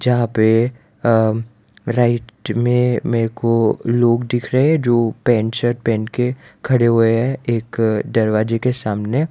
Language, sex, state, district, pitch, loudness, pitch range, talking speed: Hindi, male, Gujarat, Valsad, 115 Hz, -17 LUFS, 110-120 Hz, 150 wpm